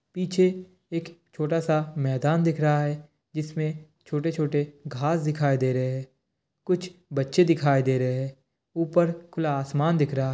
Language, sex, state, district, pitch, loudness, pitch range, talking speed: Hindi, male, Bihar, Kishanganj, 155 Hz, -26 LUFS, 140-165 Hz, 180 wpm